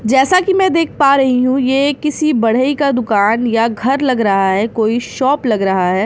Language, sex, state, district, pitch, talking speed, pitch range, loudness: Hindi, female, Bihar, Katihar, 255 Hz, 220 wpm, 225-280 Hz, -14 LUFS